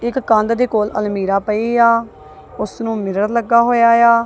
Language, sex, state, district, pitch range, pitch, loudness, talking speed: Punjabi, female, Punjab, Kapurthala, 210-235 Hz, 225 Hz, -15 LUFS, 195 wpm